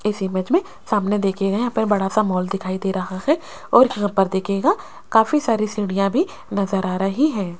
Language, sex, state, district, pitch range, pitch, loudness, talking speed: Hindi, female, Rajasthan, Jaipur, 195-225 Hz, 200 Hz, -20 LUFS, 205 wpm